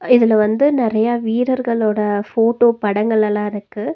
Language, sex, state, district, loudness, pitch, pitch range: Tamil, female, Tamil Nadu, Nilgiris, -16 LUFS, 225 Hz, 210-235 Hz